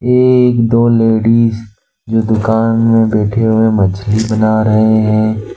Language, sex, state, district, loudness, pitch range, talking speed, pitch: Hindi, male, Jharkhand, Ranchi, -11 LUFS, 110-115 Hz, 120 wpm, 110 Hz